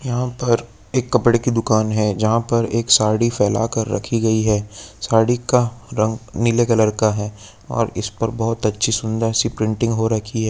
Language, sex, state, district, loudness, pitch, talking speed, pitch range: Hindi, male, Chhattisgarh, Korba, -19 LUFS, 115 Hz, 195 wpm, 110-115 Hz